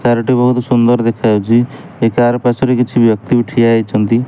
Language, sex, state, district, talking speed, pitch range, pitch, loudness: Odia, male, Odisha, Malkangiri, 170 wpm, 115-125 Hz, 120 Hz, -13 LUFS